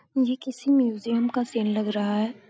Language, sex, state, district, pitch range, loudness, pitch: Hindi, female, Uttar Pradesh, Gorakhpur, 215-255 Hz, -25 LUFS, 235 Hz